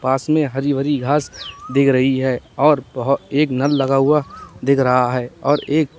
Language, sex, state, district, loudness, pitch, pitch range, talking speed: Hindi, male, Uttar Pradesh, Lalitpur, -17 LUFS, 140 Hz, 130-145 Hz, 190 wpm